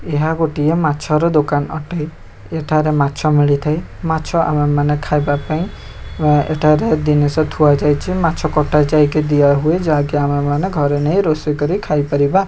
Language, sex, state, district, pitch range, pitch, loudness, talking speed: Odia, male, Odisha, Khordha, 145-155 Hz, 150 Hz, -16 LUFS, 155 wpm